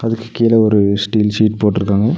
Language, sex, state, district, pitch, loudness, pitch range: Tamil, male, Tamil Nadu, Nilgiris, 110 Hz, -14 LUFS, 105-115 Hz